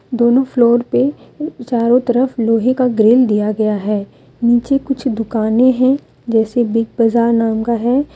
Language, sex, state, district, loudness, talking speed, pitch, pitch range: Hindi, female, Jharkhand, Deoghar, -15 LUFS, 170 wpm, 235 Hz, 225-255 Hz